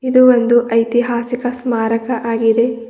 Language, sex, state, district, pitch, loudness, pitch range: Kannada, female, Karnataka, Bidar, 240 Hz, -15 LUFS, 230-245 Hz